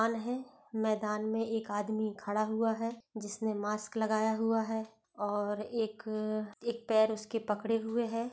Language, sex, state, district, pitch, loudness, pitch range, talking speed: Hindi, female, Bihar, East Champaran, 220 Hz, -34 LUFS, 215-225 Hz, 160 wpm